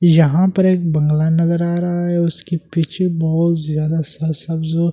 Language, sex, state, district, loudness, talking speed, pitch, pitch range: Hindi, male, Delhi, New Delhi, -17 LUFS, 160 wpm, 165 Hz, 160-170 Hz